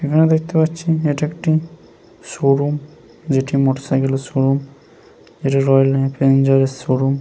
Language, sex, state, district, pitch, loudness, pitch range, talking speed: Bengali, male, West Bengal, Paschim Medinipur, 135 Hz, -17 LUFS, 135-155 Hz, 165 wpm